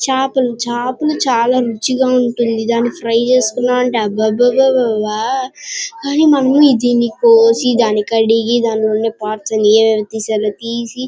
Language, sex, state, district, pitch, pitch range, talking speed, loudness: Telugu, female, Andhra Pradesh, Chittoor, 235 Hz, 225-255 Hz, 105 wpm, -14 LUFS